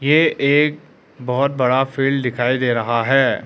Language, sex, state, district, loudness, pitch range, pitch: Hindi, male, Arunachal Pradesh, Lower Dibang Valley, -17 LUFS, 125-140 Hz, 135 Hz